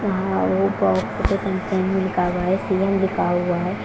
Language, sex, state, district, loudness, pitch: Hindi, female, Punjab, Fazilka, -21 LUFS, 185 Hz